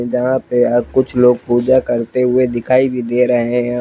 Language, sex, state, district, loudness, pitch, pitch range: Hindi, male, Uttar Pradesh, Lucknow, -14 LUFS, 125 Hz, 120-130 Hz